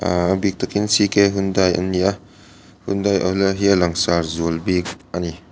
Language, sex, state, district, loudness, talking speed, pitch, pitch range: Mizo, male, Mizoram, Aizawl, -19 LUFS, 185 wpm, 95 Hz, 90-100 Hz